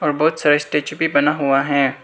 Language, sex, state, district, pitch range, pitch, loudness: Hindi, male, Arunachal Pradesh, Lower Dibang Valley, 140-150 Hz, 150 Hz, -17 LUFS